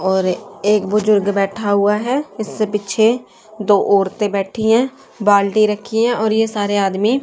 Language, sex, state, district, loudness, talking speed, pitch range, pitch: Hindi, female, Haryana, Jhajjar, -17 LUFS, 160 wpm, 200-220 Hz, 210 Hz